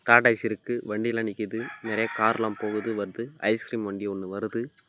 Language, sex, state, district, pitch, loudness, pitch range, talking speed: Tamil, male, Tamil Nadu, Namakkal, 110 Hz, -27 LUFS, 105-115 Hz, 185 wpm